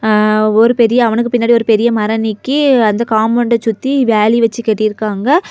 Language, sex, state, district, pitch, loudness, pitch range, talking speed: Tamil, female, Tamil Nadu, Kanyakumari, 225 Hz, -12 LUFS, 215-240 Hz, 165 wpm